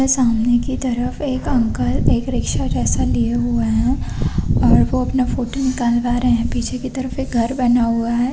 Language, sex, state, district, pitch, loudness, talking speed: Hindi, female, Chhattisgarh, Rajnandgaon, 240 Hz, -18 LUFS, 185 wpm